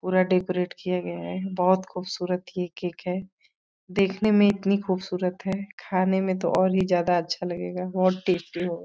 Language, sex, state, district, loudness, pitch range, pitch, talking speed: Hindi, female, Uttar Pradesh, Deoria, -25 LUFS, 180-190 Hz, 185 Hz, 175 wpm